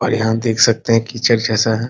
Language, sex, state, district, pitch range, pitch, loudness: Hindi, male, Bihar, Muzaffarpur, 110-115 Hz, 115 Hz, -15 LUFS